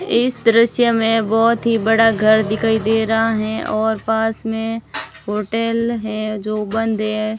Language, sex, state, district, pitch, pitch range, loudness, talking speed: Hindi, female, Rajasthan, Barmer, 225 Hz, 215-230 Hz, -17 LUFS, 155 wpm